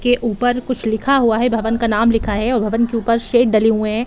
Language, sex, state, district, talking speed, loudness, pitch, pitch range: Hindi, female, Bihar, Saran, 280 wpm, -16 LUFS, 230 Hz, 220-245 Hz